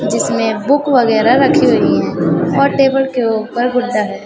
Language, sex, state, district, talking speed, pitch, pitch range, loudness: Hindi, female, Chhattisgarh, Raipur, 170 wpm, 250 Hz, 230-275 Hz, -13 LUFS